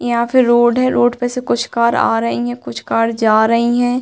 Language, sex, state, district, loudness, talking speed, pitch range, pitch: Hindi, female, Uttar Pradesh, Hamirpur, -15 LUFS, 240 wpm, 220-245 Hz, 235 Hz